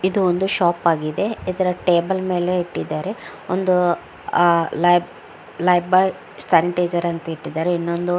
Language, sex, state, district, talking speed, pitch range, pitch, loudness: Kannada, female, Karnataka, Mysore, 125 wpm, 170-185 Hz, 175 Hz, -20 LUFS